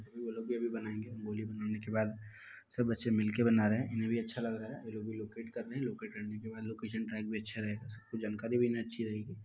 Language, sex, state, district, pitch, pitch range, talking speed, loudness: Hindi, male, Bihar, Muzaffarpur, 110 Hz, 110-115 Hz, 265 wpm, -37 LUFS